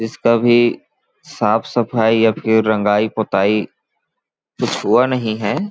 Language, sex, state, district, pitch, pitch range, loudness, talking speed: Hindi, male, Chhattisgarh, Balrampur, 110 Hz, 105-120 Hz, -16 LUFS, 125 wpm